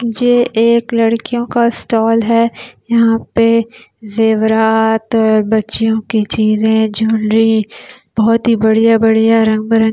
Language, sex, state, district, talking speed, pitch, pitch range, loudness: Hindi, female, Delhi, New Delhi, 110 wpm, 225 Hz, 220-230 Hz, -13 LUFS